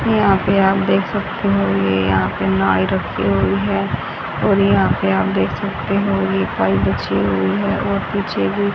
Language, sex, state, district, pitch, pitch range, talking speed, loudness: Hindi, female, Haryana, Charkhi Dadri, 95 Hz, 95-100 Hz, 200 wpm, -17 LUFS